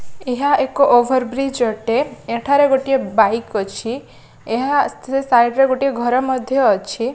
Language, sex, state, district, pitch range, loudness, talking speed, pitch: Odia, female, Odisha, Malkangiri, 235-270 Hz, -17 LUFS, 135 wpm, 260 Hz